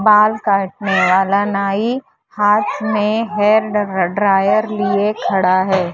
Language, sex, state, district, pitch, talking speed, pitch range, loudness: Hindi, female, Maharashtra, Mumbai Suburban, 205 Hz, 120 wpm, 195-215 Hz, -15 LUFS